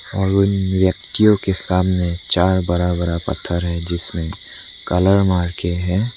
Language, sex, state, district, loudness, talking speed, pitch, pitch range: Hindi, male, Arunachal Pradesh, Lower Dibang Valley, -18 LUFS, 145 wpm, 90 Hz, 85-95 Hz